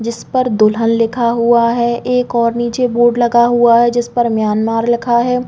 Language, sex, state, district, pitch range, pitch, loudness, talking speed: Hindi, female, Chhattisgarh, Raigarh, 230-240 Hz, 235 Hz, -13 LUFS, 185 wpm